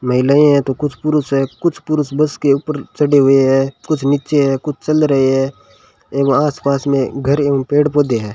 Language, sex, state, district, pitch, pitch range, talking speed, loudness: Hindi, male, Rajasthan, Bikaner, 140 Hz, 135-150 Hz, 210 wpm, -15 LUFS